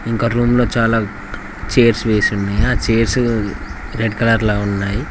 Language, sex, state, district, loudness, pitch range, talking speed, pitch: Telugu, male, Telangana, Mahabubabad, -16 LUFS, 100-115 Hz, 140 wpm, 115 Hz